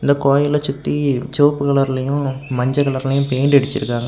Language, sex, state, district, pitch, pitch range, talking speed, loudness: Tamil, male, Tamil Nadu, Kanyakumari, 140 Hz, 135-140 Hz, 130 wpm, -17 LUFS